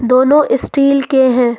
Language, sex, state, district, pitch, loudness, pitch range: Hindi, female, Jharkhand, Ranchi, 265 Hz, -12 LUFS, 250-275 Hz